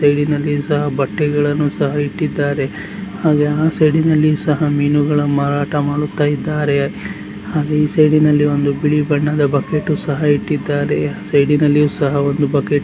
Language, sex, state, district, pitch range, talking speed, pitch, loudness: Kannada, male, Karnataka, Dakshina Kannada, 145-150 Hz, 145 wpm, 145 Hz, -16 LUFS